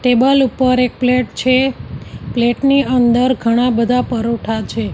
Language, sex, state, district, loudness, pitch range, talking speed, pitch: Gujarati, female, Gujarat, Gandhinagar, -15 LUFS, 235-255 Hz, 145 wpm, 250 Hz